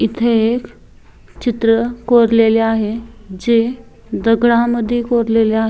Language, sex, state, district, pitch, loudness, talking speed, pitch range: Marathi, female, Maharashtra, Chandrapur, 230 Hz, -15 LUFS, 105 wpm, 225-235 Hz